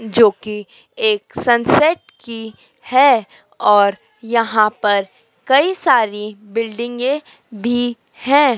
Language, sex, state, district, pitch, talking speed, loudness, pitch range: Hindi, female, Madhya Pradesh, Dhar, 235 Hz, 90 wpm, -16 LUFS, 215-280 Hz